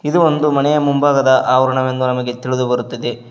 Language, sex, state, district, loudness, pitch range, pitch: Kannada, male, Karnataka, Koppal, -15 LUFS, 125-145 Hz, 130 Hz